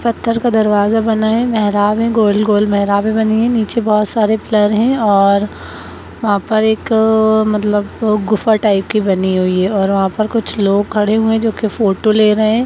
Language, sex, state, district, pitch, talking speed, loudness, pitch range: Hindi, male, Bihar, Lakhisarai, 215 Hz, 190 wpm, -14 LUFS, 205-220 Hz